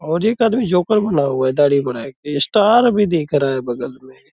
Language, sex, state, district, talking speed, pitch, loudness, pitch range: Hindi, male, Bihar, Purnia, 265 wpm, 145 Hz, -17 LUFS, 130-210 Hz